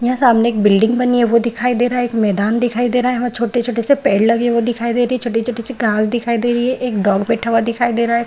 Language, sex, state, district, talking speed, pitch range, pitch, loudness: Hindi, female, Bihar, Madhepura, 325 wpm, 230-245 Hz, 235 Hz, -16 LUFS